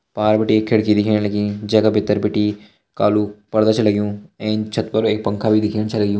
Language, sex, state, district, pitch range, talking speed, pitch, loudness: Hindi, male, Uttarakhand, Tehri Garhwal, 105-110 Hz, 205 wpm, 105 Hz, -18 LUFS